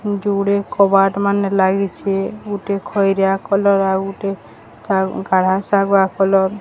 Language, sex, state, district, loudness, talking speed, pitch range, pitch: Odia, female, Odisha, Sambalpur, -17 LUFS, 120 wpm, 190-200 Hz, 195 Hz